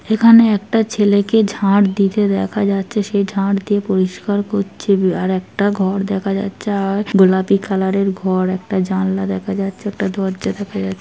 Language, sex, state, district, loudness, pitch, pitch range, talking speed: Bengali, female, West Bengal, Jhargram, -16 LUFS, 195 Hz, 190-205 Hz, 165 wpm